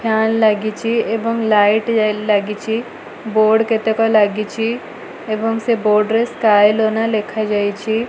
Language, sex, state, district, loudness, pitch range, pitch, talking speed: Odia, female, Odisha, Malkangiri, -16 LUFS, 215-225 Hz, 220 Hz, 110 wpm